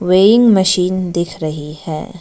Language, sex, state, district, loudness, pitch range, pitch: Hindi, female, Arunachal Pradesh, Lower Dibang Valley, -14 LUFS, 160-190 Hz, 180 Hz